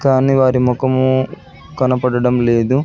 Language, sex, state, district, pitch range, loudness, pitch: Telugu, male, Telangana, Hyderabad, 125-130 Hz, -15 LUFS, 130 Hz